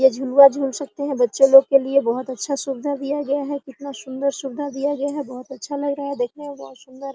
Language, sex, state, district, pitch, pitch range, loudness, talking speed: Hindi, female, Bihar, Araria, 275 Hz, 265-285 Hz, -20 LUFS, 260 wpm